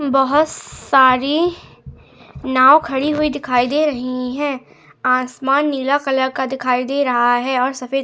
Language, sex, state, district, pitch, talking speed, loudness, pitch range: Hindi, female, Goa, North and South Goa, 265 Hz, 150 wpm, -17 LUFS, 255-285 Hz